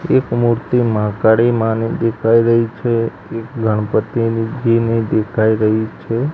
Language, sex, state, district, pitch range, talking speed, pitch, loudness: Gujarati, male, Gujarat, Gandhinagar, 110-115 Hz, 115 wpm, 115 Hz, -16 LUFS